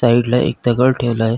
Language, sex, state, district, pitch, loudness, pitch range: Marathi, male, Maharashtra, Pune, 120 Hz, -16 LUFS, 120-125 Hz